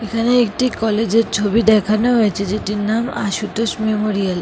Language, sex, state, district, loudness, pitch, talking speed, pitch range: Bengali, female, West Bengal, Kolkata, -17 LUFS, 220 Hz, 165 wpm, 210-230 Hz